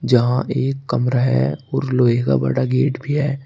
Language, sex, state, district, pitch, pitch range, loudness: Hindi, male, Uttar Pradesh, Shamli, 125 Hz, 120-135 Hz, -19 LUFS